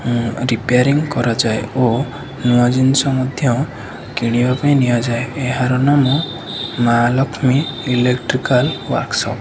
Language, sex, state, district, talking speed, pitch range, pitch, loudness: Odia, male, Odisha, Khordha, 110 wpm, 120-135 Hz, 125 Hz, -16 LUFS